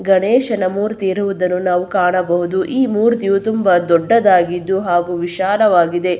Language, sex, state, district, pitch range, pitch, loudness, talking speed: Kannada, female, Karnataka, Belgaum, 180-205 Hz, 190 Hz, -15 LUFS, 105 wpm